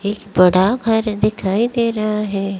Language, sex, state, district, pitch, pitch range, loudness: Hindi, female, Odisha, Malkangiri, 210 Hz, 195-220 Hz, -17 LUFS